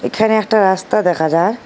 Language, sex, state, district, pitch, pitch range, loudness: Bengali, female, Assam, Hailakandi, 195 Hz, 175-220 Hz, -14 LUFS